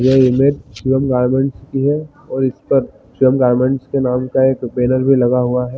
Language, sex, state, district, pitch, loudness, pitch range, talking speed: Hindi, male, Chhattisgarh, Balrampur, 130 Hz, -16 LUFS, 125-135 Hz, 205 wpm